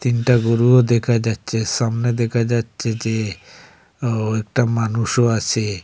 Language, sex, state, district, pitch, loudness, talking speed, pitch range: Bengali, male, Assam, Hailakandi, 115 Hz, -19 LUFS, 125 wpm, 110-120 Hz